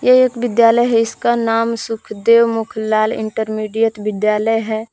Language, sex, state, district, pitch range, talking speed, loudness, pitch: Hindi, female, Jharkhand, Palamu, 215-230 Hz, 135 wpm, -16 LUFS, 225 Hz